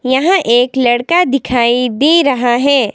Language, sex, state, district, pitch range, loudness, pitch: Hindi, female, Himachal Pradesh, Shimla, 240-280 Hz, -12 LUFS, 260 Hz